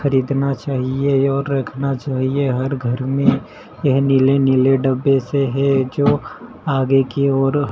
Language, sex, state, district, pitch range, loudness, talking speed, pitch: Hindi, male, Madhya Pradesh, Dhar, 130-140 Hz, -17 LUFS, 140 wpm, 135 Hz